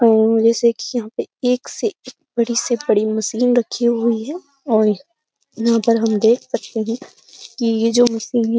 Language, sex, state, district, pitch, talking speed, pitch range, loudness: Hindi, female, Uttar Pradesh, Jyotiba Phule Nagar, 235 Hz, 195 wpm, 225-245 Hz, -18 LUFS